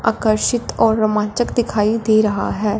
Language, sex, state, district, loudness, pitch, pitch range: Hindi, female, Punjab, Fazilka, -17 LUFS, 215 Hz, 215-225 Hz